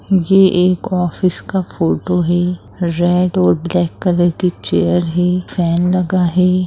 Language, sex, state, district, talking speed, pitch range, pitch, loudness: Hindi, female, Chhattisgarh, Rajnandgaon, 145 wpm, 175-185 Hz, 180 Hz, -15 LUFS